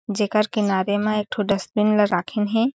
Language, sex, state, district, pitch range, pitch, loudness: Chhattisgarhi, female, Chhattisgarh, Jashpur, 205-215 Hz, 210 Hz, -21 LUFS